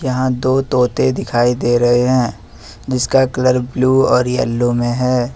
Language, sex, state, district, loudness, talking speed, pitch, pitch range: Hindi, male, Jharkhand, Ranchi, -15 LUFS, 155 wpm, 125 Hz, 120-130 Hz